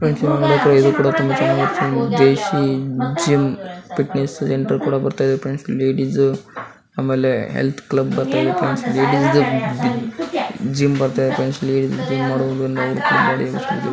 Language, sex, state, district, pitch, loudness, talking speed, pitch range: Kannada, male, Karnataka, Bijapur, 135 Hz, -18 LUFS, 105 wpm, 130-140 Hz